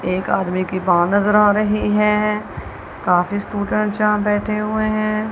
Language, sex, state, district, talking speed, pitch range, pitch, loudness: Hindi, female, Punjab, Kapurthala, 160 wpm, 200-215 Hz, 210 Hz, -18 LUFS